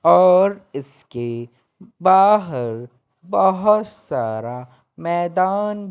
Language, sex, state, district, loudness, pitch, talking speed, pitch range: Hindi, male, Madhya Pradesh, Katni, -18 LUFS, 175 Hz, 60 wpm, 125-195 Hz